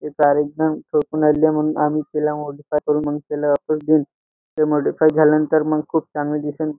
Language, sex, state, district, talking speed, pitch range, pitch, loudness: Marathi, male, Maharashtra, Nagpur, 60 wpm, 150-155 Hz, 150 Hz, -19 LUFS